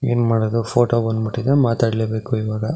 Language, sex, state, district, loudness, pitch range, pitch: Kannada, male, Karnataka, Shimoga, -19 LUFS, 110-120 Hz, 115 Hz